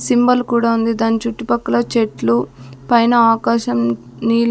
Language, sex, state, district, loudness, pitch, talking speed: Telugu, female, Andhra Pradesh, Sri Satya Sai, -16 LUFS, 225 Hz, 120 wpm